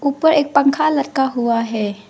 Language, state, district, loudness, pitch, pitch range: Hindi, Arunachal Pradesh, Lower Dibang Valley, -17 LUFS, 275 Hz, 235-295 Hz